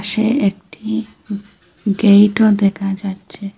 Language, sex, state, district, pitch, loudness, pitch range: Bengali, female, Assam, Hailakandi, 200 Hz, -15 LUFS, 195-205 Hz